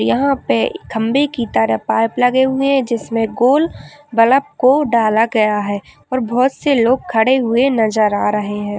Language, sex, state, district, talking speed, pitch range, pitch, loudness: Hindi, female, Uttar Pradesh, Etah, 175 wpm, 220-265 Hz, 235 Hz, -15 LUFS